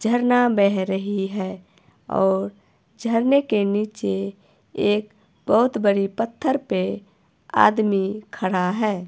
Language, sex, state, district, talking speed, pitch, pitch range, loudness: Hindi, female, Himachal Pradesh, Shimla, 105 wpm, 205 Hz, 190-220 Hz, -21 LUFS